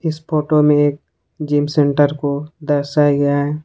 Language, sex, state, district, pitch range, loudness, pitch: Hindi, male, Jharkhand, Ranchi, 145-150 Hz, -16 LUFS, 145 Hz